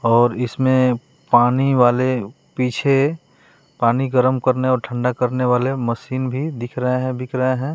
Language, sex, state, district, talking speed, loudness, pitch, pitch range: Hindi, male, Bihar, West Champaran, 155 wpm, -19 LUFS, 125 Hz, 125-130 Hz